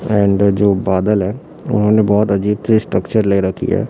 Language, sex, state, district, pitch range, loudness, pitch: Hindi, male, Chhattisgarh, Raipur, 100-105 Hz, -15 LUFS, 100 Hz